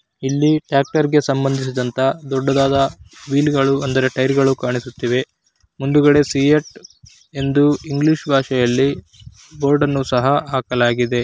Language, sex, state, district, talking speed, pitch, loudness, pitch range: Kannada, male, Karnataka, Chamarajanagar, 105 wpm, 135 Hz, -17 LUFS, 130-145 Hz